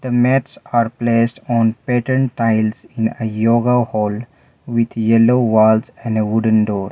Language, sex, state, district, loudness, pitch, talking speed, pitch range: English, male, Mizoram, Aizawl, -16 LUFS, 115 Hz, 155 wpm, 110-120 Hz